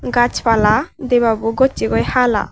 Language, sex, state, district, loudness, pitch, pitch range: Chakma, female, Tripura, Unakoti, -16 LUFS, 230 Hz, 215-250 Hz